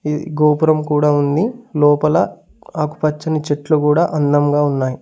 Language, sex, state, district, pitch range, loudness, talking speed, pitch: Telugu, male, Telangana, Mahabubabad, 145-155 Hz, -16 LUFS, 120 wpm, 150 Hz